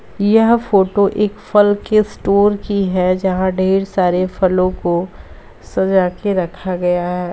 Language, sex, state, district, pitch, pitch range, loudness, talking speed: Hindi, female, Bihar, Purnia, 190 Hz, 185-205 Hz, -15 LUFS, 145 wpm